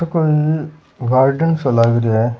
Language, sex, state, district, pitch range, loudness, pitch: Rajasthani, male, Rajasthan, Churu, 120-155 Hz, -16 LUFS, 140 Hz